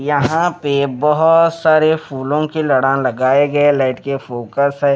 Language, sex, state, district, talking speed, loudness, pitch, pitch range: Hindi, male, Bihar, Patna, 155 wpm, -15 LUFS, 140 Hz, 135-155 Hz